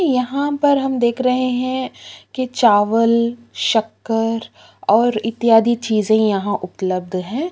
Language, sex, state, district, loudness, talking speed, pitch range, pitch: Hindi, female, Chhattisgarh, Kabirdham, -18 LUFS, 130 wpm, 220-255 Hz, 230 Hz